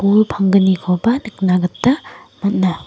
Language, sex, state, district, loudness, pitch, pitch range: Garo, female, Meghalaya, West Garo Hills, -16 LUFS, 195 Hz, 185-215 Hz